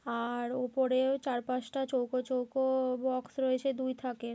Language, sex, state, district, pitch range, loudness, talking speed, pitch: Bengali, female, West Bengal, Kolkata, 250-260 Hz, -33 LUFS, 150 wpm, 255 Hz